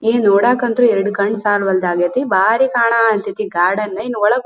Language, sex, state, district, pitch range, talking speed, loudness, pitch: Kannada, female, Karnataka, Dharwad, 200-235 Hz, 160 wpm, -15 LUFS, 210 Hz